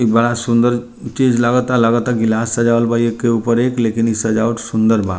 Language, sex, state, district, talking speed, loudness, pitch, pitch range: Bhojpuri, male, Bihar, Muzaffarpur, 230 wpm, -15 LUFS, 115 Hz, 115-120 Hz